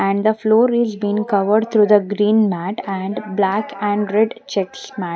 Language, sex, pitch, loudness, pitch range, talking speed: English, female, 210 Hz, -18 LUFS, 195-220 Hz, 185 wpm